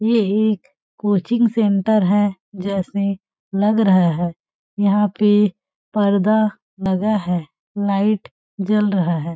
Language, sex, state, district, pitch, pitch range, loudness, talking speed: Hindi, female, Chhattisgarh, Balrampur, 205 Hz, 190-215 Hz, -19 LUFS, 115 wpm